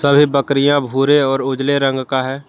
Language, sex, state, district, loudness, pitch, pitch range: Hindi, male, Jharkhand, Garhwa, -15 LUFS, 140 Hz, 135-140 Hz